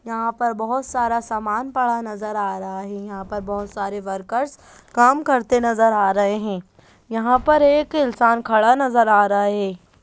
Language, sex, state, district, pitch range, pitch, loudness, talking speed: Hindi, female, Bihar, Jahanabad, 205-245 Hz, 225 Hz, -19 LUFS, 180 wpm